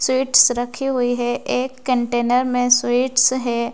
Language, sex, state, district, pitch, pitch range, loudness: Hindi, female, Bihar, West Champaran, 250 Hz, 245-255 Hz, -18 LUFS